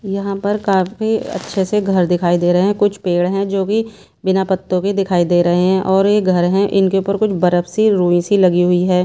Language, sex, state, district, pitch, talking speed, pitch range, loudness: Hindi, female, Himachal Pradesh, Shimla, 190 Hz, 240 wpm, 180-200 Hz, -15 LUFS